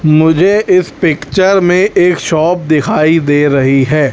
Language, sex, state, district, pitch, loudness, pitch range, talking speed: Hindi, male, Chhattisgarh, Raipur, 160 Hz, -10 LUFS, 150-185 Hz, 145 wpm